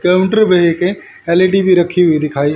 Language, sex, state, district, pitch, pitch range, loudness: Hindi, male, Haryana, Rohtak, 180 Hz, 170-185 Hz, -12 LUFS